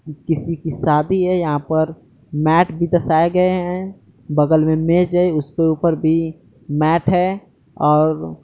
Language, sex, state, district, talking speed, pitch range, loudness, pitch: Hindi, male, Bihar, Kaimur, 155 wpm, 150-175 Hz, -17 LUFS, 160 Hz